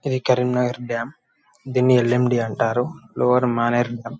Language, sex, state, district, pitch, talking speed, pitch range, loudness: Telugu, male, Telangana, Karimnagar, 125 Hz, 115 wpm, 120-125 Hz, -20 LUFS